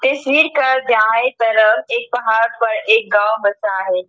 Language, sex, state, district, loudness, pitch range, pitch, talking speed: Hindi, female, Arunachal Pradesh, Lower Dibang Valley, -15 LUFS, 215-265 Hz, 230 Hz, 175 wpm